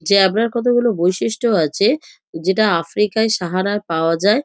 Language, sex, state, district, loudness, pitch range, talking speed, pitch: Bengali, female, West Bengal, North 24 Parganas, -17 LUFS, 180-230 Hz, 135 wpm, 205 Hz